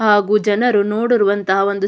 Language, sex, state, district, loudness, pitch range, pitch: Kannada, female, Karnataka, Mysore, -16 LUFS, 200-215 Hz, 205 Hz